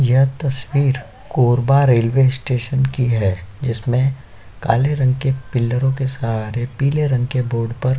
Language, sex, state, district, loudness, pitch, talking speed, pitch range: Hindi, male, Chhattisgarh, Korba, -18 LUFS, 130 Hz, 150 wpm, 120-135 Hz